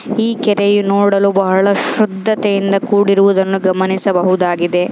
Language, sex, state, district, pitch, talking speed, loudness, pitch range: Kannada, male, Karnataka, Dharwad, 195 Hz, 85 wpm, -13 LUFS, 190-205 Hz